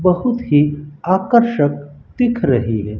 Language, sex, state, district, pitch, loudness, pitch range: Hindi, male, Rajasthan, Bikaner, 150 Hz, -16 LUFS, 145-235 Hz